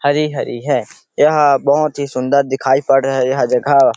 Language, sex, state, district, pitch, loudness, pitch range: Hindi, male, Chhattisgarh, Sarguja, 140 Hz, -15 LUFS, 135-145 Hz